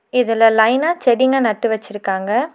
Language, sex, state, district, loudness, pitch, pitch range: Tamil, female, Tamil Nadu, Nilgiris, -16 LUFS, 230 Hz, 220-255 Hz